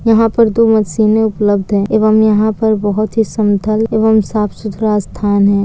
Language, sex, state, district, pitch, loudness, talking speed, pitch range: Hindi, female, Bihar, Kishanganj, 215 Hz, -13 LUFS, 180 wpm, 205-220 Hz